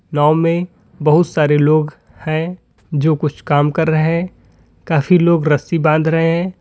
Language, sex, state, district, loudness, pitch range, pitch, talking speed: Hindi, male, Uttar Pradesh, Lalitpur, -15 LUFS, 150-165 Hz, 155 Hz, 165 wpm